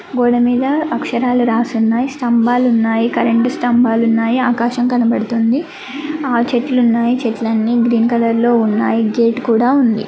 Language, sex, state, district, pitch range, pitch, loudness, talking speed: Telugu, female, Andhra Pradesh, Guntur, 230-250 Hz, 240 Hz, -15 LUFS, 135 wpm